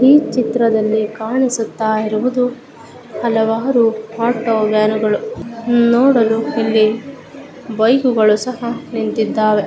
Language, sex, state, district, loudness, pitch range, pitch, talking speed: Kannada, female, Karnataka, Bijapur, -15 LUFS, 220-250 Hz, 230 Hz, 75 wpm